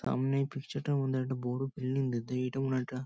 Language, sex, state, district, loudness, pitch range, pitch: Bengali, male, West Bengal, Kolkata, -33 LUFS, 130-135 Hz, 130 Hz